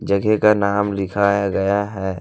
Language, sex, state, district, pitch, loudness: Hindi, male, Chhattisgarh, Raipur, 100 Hz, -18 LUFS